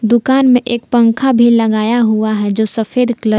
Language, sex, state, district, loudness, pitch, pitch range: Hindi, female, Jharkhand, Palamu, -12 LUFS, 230 Hz, 220-245 Hz